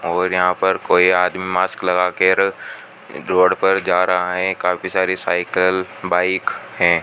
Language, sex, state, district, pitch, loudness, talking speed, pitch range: Hindi, male, Rajasthan, Bikaner, 90 Hz, -17 LUFS, 155 wpm, 90-95 Hz